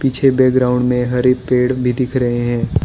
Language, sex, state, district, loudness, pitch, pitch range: Hindi, male, Arunachal Pradesh, Lower Dibang Valley, -15 LUFS, 125 Hz, 125-130 Hz